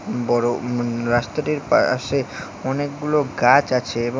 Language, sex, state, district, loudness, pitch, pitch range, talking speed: Bengali, male, West Bengal, Alipurduar, -20 LUFS, 125 Hz, 120-145 Hz, 115 wpm